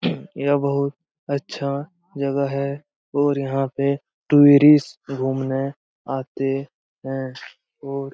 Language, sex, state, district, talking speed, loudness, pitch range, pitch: Hindi, male, Bihar, Jamui, 105 wpm, -21 LUFS, 135-145 Hz, 140 Hz